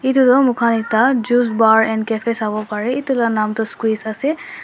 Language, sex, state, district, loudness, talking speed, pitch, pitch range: Nagamese, female, Nagaland, Dimapur, -17 LUFS, 195 wpm, 230 Hz, 220-255 Hz